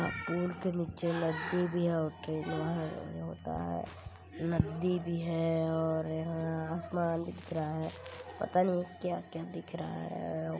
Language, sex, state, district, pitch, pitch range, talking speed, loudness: Hindi, female, Chhattisgarh, Balrampur, 165 Hz, 155-175 Hz, 160 wpm, -35 LUFS